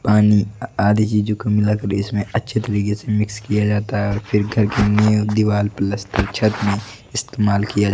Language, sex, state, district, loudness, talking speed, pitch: Hindi, male, Odisha, Nuapada, -19 LUFS, 190 wpm, 105 Hz